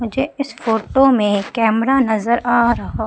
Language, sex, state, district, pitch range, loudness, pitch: Hindi, female, Madhya Pradesh, Umaria, 225-265 Hz, -16 LUFS, 235 Hz